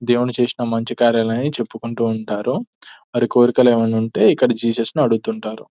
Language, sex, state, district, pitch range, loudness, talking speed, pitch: Telugu, male, Telangana, Nalgonda, 115-120 Hz, -18 LUFS, 145 wpm, 120 Hz